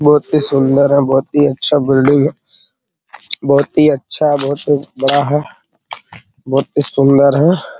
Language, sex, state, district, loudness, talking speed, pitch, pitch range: Hindi, male, Bihar, Araria, -13 LUFS, 160 wpm, 140 Hz, 135-145 Hz